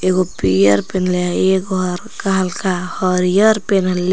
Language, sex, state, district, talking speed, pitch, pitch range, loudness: Magahi, female, Jharkhand, Palamu, 130 wpm, 185 Hz, 180-190 Hz, -16 LUFS